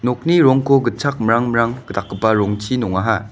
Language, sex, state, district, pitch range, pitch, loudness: Garo, male, Meghalaya, West Garo Hills, 105-130 Hz, 115 Hz, -17 LUFS